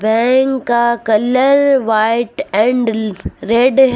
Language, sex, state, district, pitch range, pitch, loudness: Hindi, female, Uttar Pradesh, Lucknow, 220-260 Hz, 240 Hz, -14 LUFS